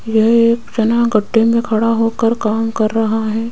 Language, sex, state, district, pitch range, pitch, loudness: Hindi, female, Rajasthan, Jaipur, 220-230 Hz, 225 Hz, -15 LUFS